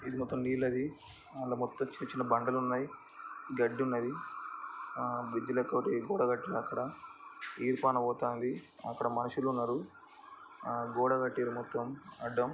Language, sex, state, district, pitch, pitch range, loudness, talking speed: Telugu, male, Andhra Pradesh, Chittoor, 125 Hz, 120-130 Hz, -35 LUFS, 110 wpm